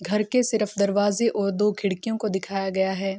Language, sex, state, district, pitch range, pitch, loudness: Hindi, female, Bihar, Gopalganj, 195-215 Hz, 205 Hz, -24 LUFS